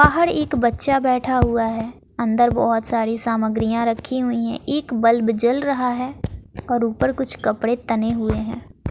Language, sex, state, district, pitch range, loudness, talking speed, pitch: Hindi, female, Bihar, West Champaran, 230-255 Hz, -20 LUFS, 170 wpm, 235 Hz